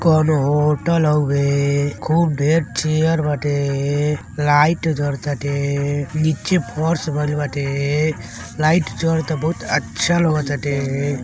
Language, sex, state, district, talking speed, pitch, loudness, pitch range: Bhojpuri, male, Uttar Pradesh, Deoria, 95 wpm, 150 Hz, -19 LUFS, 140-155 Hz